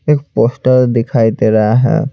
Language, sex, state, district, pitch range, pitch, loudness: Hindi, male, Bihar, Patna, 115-145 Hz, 125 Hz, -12 LUFS